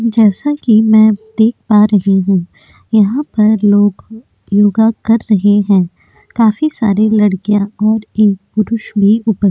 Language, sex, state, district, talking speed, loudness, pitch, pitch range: Hindi, female, Uttar Pradesh, Jyotiba Phule Nagar, 145 wpm, -12 LUFS, 215 Hz, 205-225 Hz